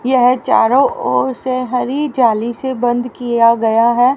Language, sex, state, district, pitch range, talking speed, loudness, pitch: Hindi, female, Haryana, Rohtak, 235-255 Hz, 160 wpm, -14 LUFS, 245 Hz